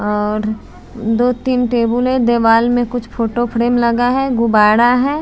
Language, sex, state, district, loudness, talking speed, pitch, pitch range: Hindi, female, Bihar, Patna, -15 LUFS, 150 wpm, 235 Hz, 230-245 Hz